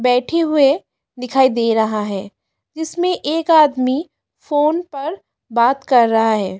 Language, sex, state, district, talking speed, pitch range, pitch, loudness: Hindi, female, Delhi, New Delhi, 135 wpm, 235-315 Hz, 265 Hz, -17 LUFS